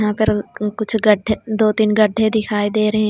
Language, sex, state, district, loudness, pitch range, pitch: Hindi, female, Jharkhand, Ranchi, -17 LUFS, 210-220 Hz, 215 Hz